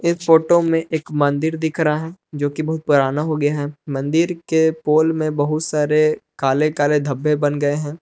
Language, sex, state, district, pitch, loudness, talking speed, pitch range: Hindi, male, Jharkhand, Palamu, 155 Hz, -18 LUFS, 200 wpm, 145-160 Hz